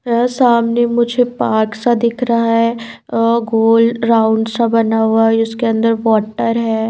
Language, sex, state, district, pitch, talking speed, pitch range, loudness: Hindi, female, Bihar, Patna, 230 Hz, 155 wpm, 225-235 Hz, -14 LUFS